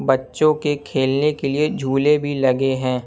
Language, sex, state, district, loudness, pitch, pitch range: Hindi, male, Punjab, Kapurthala, -19 LUFS, 135 Hz, 130-150 Hz